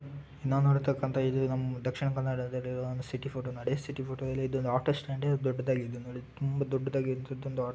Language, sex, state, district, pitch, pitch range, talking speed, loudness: Kannada, male, Karnataka, Dakshina Kannada, 130 Hz, 130-140 Hz, 180 wpm, -32 LUFS